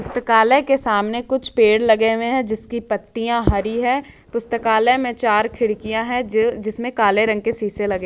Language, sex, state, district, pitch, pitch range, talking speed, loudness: Hindi, female, Jharkhand, Ranchi, 225 Hz, 220-245 Hz, 170 wpm, -18 LUFS